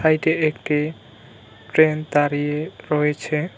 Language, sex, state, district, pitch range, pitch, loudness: Bengali, male, West Bengal, Cooch Behar, 145-155 Hz, 150 Hz, -21 LUFS